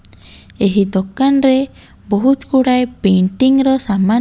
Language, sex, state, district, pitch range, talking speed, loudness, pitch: Odia, female, Odisha, Malkangiri, 190-265 Hz, 130 wpm, -14 LUFS, 230 Hz